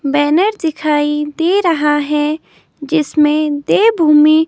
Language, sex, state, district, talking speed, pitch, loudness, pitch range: Hindi, female, Himachal Pradesh, Shimla, 95 wpm, 305 Hz, -14 LUFS, 295-320 Hz